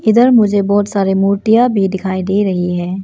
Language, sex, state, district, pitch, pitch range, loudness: Hindi, female, Arunachal Pradesh, Lower Dibang Valley, 200 Hz, 190-210 Hz, -13 LUFS